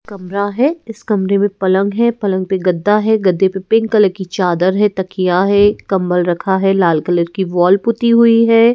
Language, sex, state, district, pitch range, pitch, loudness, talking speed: Hindi, female, Madhya Pradesh, Bhopal, 185-215 Hz, 195 Hz, -14 LUFS, 205 wpm